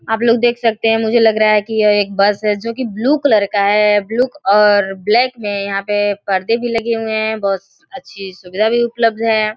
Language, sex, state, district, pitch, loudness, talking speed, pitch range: Hindi, female, Uttar Pradesh, Gorakhpur, 220 Hz, -15 LUFS, 230 wpm, 205-230 Hz